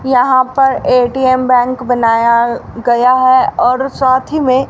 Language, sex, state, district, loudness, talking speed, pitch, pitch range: Hindi, female, Haryana, Rohtak, -12 LUFS, 140 wpm, 255 Hz, 245-260 Hz